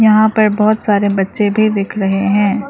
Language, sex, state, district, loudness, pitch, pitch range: Hindi, female, Arunachal Pradesh, Lower Dibang Valley, -13 LUFS, 210 Hz, 200-215 Hz